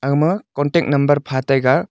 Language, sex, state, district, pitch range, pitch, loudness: Wancho, male, Arunachal Pradesh, Longding, 135-160 Hz, 145 Hz, -17 LUFS